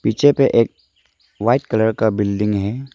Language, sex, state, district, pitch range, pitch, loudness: Hindi, male, Arunachal Pradesh, Lower Dibang Valley, 105-125 Hz, 110 Hz, -17 LUFS